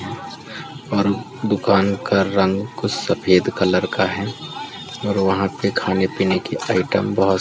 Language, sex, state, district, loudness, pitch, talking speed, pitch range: Hindi, male, Uttar Pradesh, Muzaffarnagar, -19 LUFS, 100 Hz, 160 wpm, 95-100 Hz